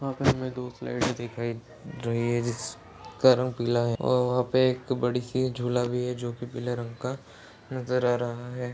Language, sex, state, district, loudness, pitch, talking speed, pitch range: Hindi, male, Uttar Pradesh, Etah, -28 LUFS, 125 Hz, 200 wpm, 120-125 Hz